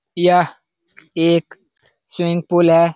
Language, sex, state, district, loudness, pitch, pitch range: Hindi, male, Bihar, Jahanabad, -16 LUFS, 170 Hz, 165-175 Hz